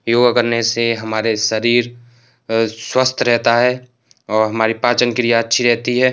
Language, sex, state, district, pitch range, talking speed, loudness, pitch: Hindi, male, Uttar Pradesh, Etah, 115-120 Hz, 155 wpm, -16 LUFS, 120 Hz